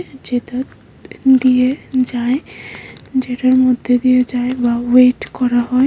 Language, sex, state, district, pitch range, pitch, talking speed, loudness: Bengali, female, Tripura, West Tripura, 245-255 Hz, 255 Hz, 115 wpm, -15 LUFS